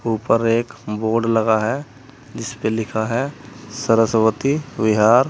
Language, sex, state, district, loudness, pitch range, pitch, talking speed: Hindi, male, Uttar Pradesh, Saharanpur, -19 LUFS, 110-130 Hz, 115 Hz, 115 wpm